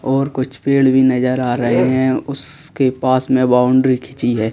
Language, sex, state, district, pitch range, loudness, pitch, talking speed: Hindi, male, Madhya Pradesh, Bhopal, 125-135 Hz, -15 LUFS, 130 Hz, 185 wpm